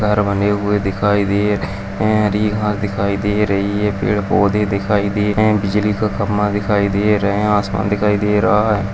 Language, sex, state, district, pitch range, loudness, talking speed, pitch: Kumaoni, male, Uttarakhand, Uttarkashi, 100-105 Hz, -17 LUFS, 210 wpm, 105 Hz